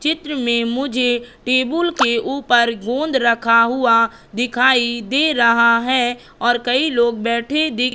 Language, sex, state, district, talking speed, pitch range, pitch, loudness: Hindi, female, Madhya Pradesh, Katni, 135 wpm, 235-265 Hz, 245 Hz, -17 LUFS